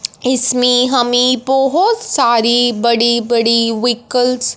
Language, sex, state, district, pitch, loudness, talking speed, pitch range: Hindi, female, Punjab, Fazilka, 245 Hz, -13 LUFS, 105 wpm, 235-255 Hz